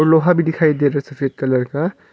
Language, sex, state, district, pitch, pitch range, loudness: Hindi, male, Arunachal Pradesh, Longding, 145 Hz, 140-160 Hz, -17 LUFS